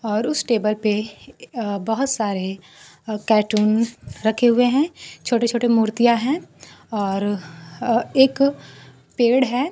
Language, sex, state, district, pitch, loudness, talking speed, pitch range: Hindi, female, Bihar, Kaimur, 225 Hz, -20 LUFS, 115 wpm, 210-245 Hz